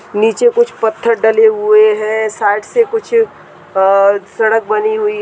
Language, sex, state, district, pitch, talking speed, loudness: Hindi, male, Rajasthan, Churu, 220 Hz, 150 wpm, -12 LUFS